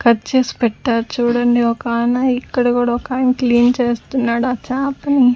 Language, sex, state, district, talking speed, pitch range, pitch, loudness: Telugu, female, Andhra Pradesh, Sri Satya Sai, 135 wpm, 235-255 Hz, 245 Hz, -17 LUFS